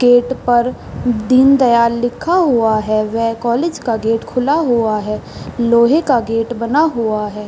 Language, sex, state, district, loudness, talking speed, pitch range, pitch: Hindi, female, Bihar, East Champaran, -15 LUFS, 160 wpm, 225-255 Hz, 235 Hz